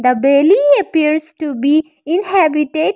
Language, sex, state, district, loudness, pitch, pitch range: English, female, Arunachal Pradesh, Lower Dibang Valley, -14 LUFS, 310 Hz, 285-330 Hz